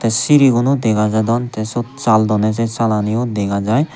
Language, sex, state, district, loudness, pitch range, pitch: Chakma, male, Tripura, Unakoti, -16 LUFS, 110-120 Hz, 115 Hz